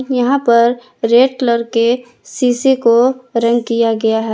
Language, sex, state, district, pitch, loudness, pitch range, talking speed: Hindi, female, Jharkhand, Palamu, 240 Hz, -14 LUFS, 230-255 Hz, 150 wpm